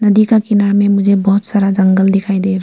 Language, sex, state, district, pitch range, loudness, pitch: Hindi, female, Arunachal Pradesh, Lower Dibang Valley, 195-205 Hz, -12 LUFS, 200 Hz